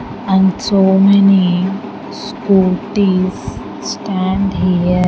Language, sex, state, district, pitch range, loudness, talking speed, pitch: English, female, Andhra Pradesh, Sri Satya Sai, 185-200 Hz, -14 LUFS, 70 wpm, 190 Hz